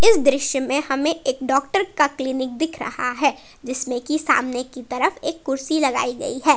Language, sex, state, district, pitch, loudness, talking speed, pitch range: Hindi, female, Jharkhand, Palamu, 275 Hz, -22 LUFS, 190 wpm, 260-300 Hz